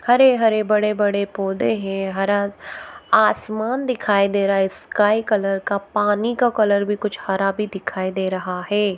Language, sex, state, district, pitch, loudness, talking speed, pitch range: Hindi, female, Bihar, Araria, 205 Hz, -20 LUFS, 235 wpm, 195-215 Hz